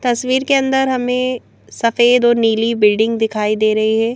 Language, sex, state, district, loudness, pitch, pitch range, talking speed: Hindi, female, Madhya Pradesh, Bhopal, -15 LUFS, 235 Hz, 220-250 Hz, 175 wpm